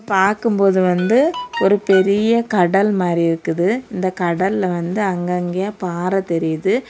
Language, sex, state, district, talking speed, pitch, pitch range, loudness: Tamil, female, Tamil Nadu, Kanyakumari, 115 wpm, 190 Hz, 180-205 Hz, -17 LUFS